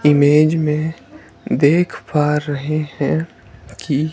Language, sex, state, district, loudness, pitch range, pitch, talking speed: Hindi, male, Himachal Pradesh, Shimla, -17 LUFS, 140-155 Hz, 150 Hz, 100 wpm